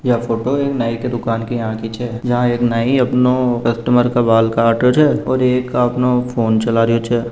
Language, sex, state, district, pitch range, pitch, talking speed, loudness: Marwari, male, Rajasthan, Nagaur, 115-125 Hz, 120 Hz, 215 wpm, -16 LUFS